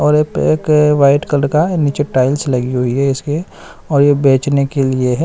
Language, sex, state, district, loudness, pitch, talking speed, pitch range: Hindi, male, Bihar, West Champaran, -14 LUFS, 140 Hz, 215 wpm, 135-150 Hz